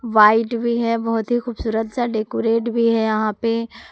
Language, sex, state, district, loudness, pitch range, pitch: Hindi, female, Jharkhand, Palamu, -19 LUFS, 225-235 Hz, 230 Hz